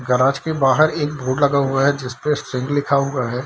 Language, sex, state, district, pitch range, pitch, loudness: Hindi, male, Bihar, Darbhanga, 130-145 Hz, 140 Hz, -19 LUFS